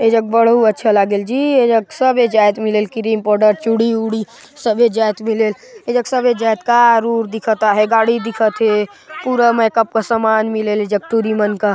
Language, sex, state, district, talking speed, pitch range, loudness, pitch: Chhattisgarhi, male, Chhattisgarh, Sarguja, 165 wpm, 215-235 Hz, -15 LUFS, 225 Hz